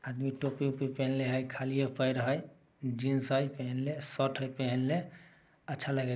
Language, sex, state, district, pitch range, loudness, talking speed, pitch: Maithili, male, Bihar, Samastipur, 130-145 Hz, -34 LUFS, 145 wpm, 135 Hz